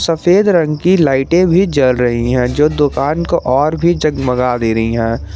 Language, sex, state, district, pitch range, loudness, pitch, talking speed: Hindi, male, Jharkhand, Garhwa, 125-170 Hz, -13 LUFS, 150 Hz, 190 wpm